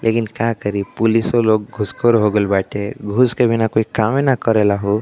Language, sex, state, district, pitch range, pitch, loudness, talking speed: Bhojpuri, male, Uttar Pradesh, Deoria, 105-115 Hz, 110 Hz, -17 LUFS, 205 wpm